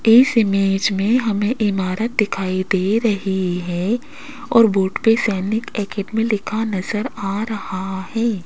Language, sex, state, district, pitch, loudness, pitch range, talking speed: Hindi, female, Rajasthan, Jaipur, 210 Hz, -19 LUFS, 195-225 Hz, 135 wpm